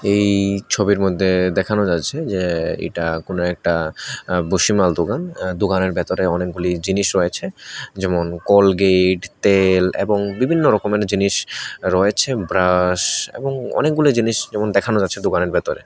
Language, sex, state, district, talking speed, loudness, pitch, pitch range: Bengali, male, Tripura, West Tripura, 135 wpm, -18 LUFS, 95 Hz, 90-105 Hz